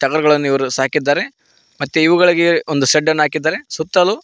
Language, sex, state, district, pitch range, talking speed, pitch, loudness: Kannada, male, Karnataka, Koppal, 140-160 Hz, 140 wpm, 155 Hz, -15 LUFS